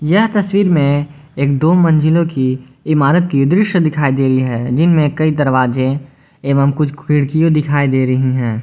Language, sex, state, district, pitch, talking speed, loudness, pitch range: Hindi, male, Jharkhand, Garhwa, 145 Hz, 165 wpm, -14 LUFS, 135-160 Hz